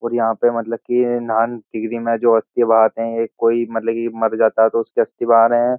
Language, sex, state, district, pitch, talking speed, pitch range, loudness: Hindi, male, Uttar Pradesh, Jyotiba Phule Nagar, 115 Hz, 220 wpm, 115-120 Hz, -17 LUFS